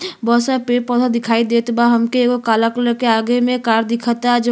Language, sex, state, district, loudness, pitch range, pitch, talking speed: Bhojpuri, female, Uttar Pradesh, Gorakhpur, -16 LUFS, 235-245 Hz, 240 Hz, 250 wpm